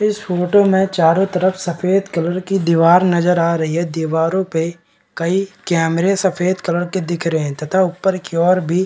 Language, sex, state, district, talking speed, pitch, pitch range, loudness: Hindi, male, Bihar, Kishanganj, 195 wpm, 180 Hz, 170-190 Hz, -17 LUFS